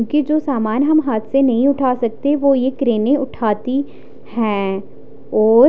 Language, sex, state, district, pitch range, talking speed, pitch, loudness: Hindi, female, Odisha, Khordha, 225-280 Hz, 160 wpm, 255 Hz, -17 LUFS